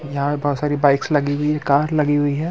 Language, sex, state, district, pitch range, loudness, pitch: Hindi, male, Bihar, Muzaffarpur, 145-150 Hz, -19 LUFS, 145 Hz